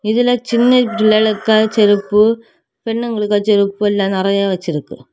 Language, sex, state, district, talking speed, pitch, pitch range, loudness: Tamil, female, Tamil Nadu, Kanyakumari, 105 wpm, 215 Hz, 200-225 Hz, -14 LUFS